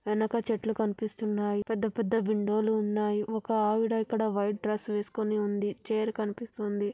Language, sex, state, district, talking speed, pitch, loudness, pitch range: Telugu, female, Andhra Pradesh, Anantapur, 145 wpm, 215 Hz, -30 LUFS, 210-220 Hz